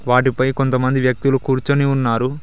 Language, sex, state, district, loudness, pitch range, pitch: Telugu, male, Telangana, Mahabubabad, -17 LUFS, 130-135 Hz, 130 Hz